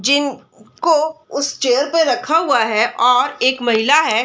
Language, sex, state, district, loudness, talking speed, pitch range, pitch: Hindi, female, Chhattisgarh, Bilaspur, -16 LUFS, 170 wpm, 245-310 Hz, 270 Hz